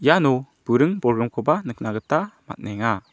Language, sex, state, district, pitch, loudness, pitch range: Garo, male, Meghalaya, South Garo Hills, 125 Hz, -22 LUFS, 115-150 Hz